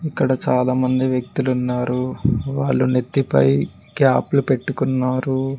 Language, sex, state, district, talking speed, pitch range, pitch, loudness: Telugu, male, Telangana, Mahabubabad, 85 wpm, 125-135 Hz, 130 Hz, -19 LUFS